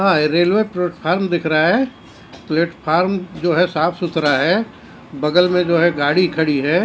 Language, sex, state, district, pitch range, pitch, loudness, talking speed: Hindi, male, Maharashtra, Mumbai Suburban, 155-180 Hz, 170 Hz, -17 LUFS, 165 wpm